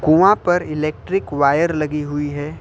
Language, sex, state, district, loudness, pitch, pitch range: Hindi, male, Jharkhand, Ranchi, -18 LUFS, 155 Hz, 145-170 Hz